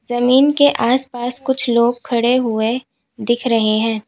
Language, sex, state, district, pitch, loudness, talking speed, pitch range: Hindi, female, Uttar Pradesh, Lalitpur, 245 Hz, -16 LUFS, 160 wpm, 230-255 Hz